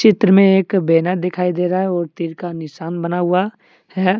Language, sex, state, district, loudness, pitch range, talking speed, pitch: Hindi, male, Jharkhand, Deoghar, -17 LUFS, 170-190 Hz, 215 wpm, 180 Hz